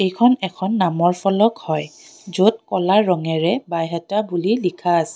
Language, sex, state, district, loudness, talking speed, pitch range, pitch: Assamese, female, Assam, Kamrup Metropolitan, -19 LUFS, 140 wpm, 170-210 Hz, 185 Hz